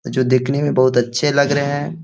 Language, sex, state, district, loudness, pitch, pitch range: Hindi, male, Bihar, Gaya, -17 LUFS, 140 Hz, 130-145 Hz